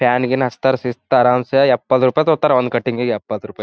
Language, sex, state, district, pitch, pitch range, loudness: Kannada, male, Karnataka, Gulbarga, 125 Hz, 125-130 Hz, -16 LUFS